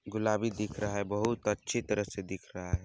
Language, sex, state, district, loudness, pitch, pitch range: Hindi, male, Chhattisgarh, Balrampur, -33 LUFS, 105 Hz, 100-110 Hz